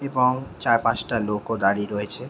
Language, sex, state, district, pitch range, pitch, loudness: Bengali, male, West Bengal, Jhargram, 105-125 Hz, 115 Hz, -23 LUFS